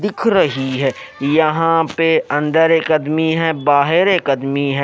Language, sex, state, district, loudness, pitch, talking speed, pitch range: Hindi, male, Odisha, Nuapada, -15 LUFS, 160 Hz, 160 wpm, 140-165 Hz